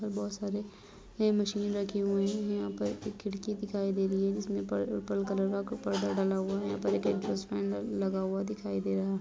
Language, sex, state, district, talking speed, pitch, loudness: Hindi, female, Uttar Pradesh, Muzaffarnagar, 215 wpm, 195 Hz, -33 LUFS